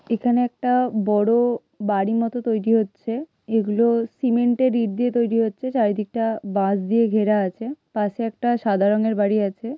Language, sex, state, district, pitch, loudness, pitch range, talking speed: Bengali, female, West Bengal, Malda, 225 Hz, -21 LUFS, 210-240 Hz, 160 wpm